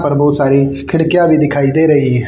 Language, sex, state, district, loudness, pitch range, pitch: Hindi, male, Haryana, Charkhi Dadri, -12 LUFS, 140-160 Hz, 145 Hz